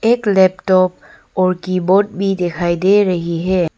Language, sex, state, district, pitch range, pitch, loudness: Hindi, female, Arunachal Pradesh, Papum Pare, 175-195 Hz, 185 Hz, -15 LUFS